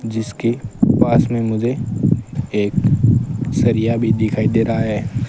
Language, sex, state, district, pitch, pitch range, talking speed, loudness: Hindi, male, Rajasthan, Bikaner, 115 Hz, 110-120 Hz, 125 wpm, -17 LUFS